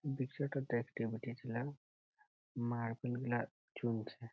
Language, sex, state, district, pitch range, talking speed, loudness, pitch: Bengali, male, West Bengal, Malda, 115-135 Hz, 85 wpm, -41 LUFS, 120 Hz